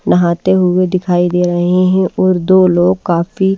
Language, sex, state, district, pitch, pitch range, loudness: Hindi, female, Maharashtra, Washim, 180 Hz, 175-185 Hz, -12 LUFS